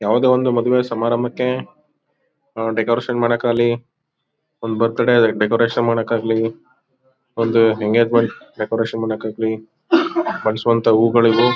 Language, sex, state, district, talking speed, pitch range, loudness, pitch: Kannada, male, Karnataka, Chamarajanagar, 110 wpm, 115-125 Hz, -18 LUFS, 115 Hz